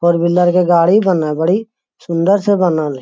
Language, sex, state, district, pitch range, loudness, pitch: Magahi, male, Bihar, Lakhisarai, 170-200 Hz, -14 LUFS, 175 Hz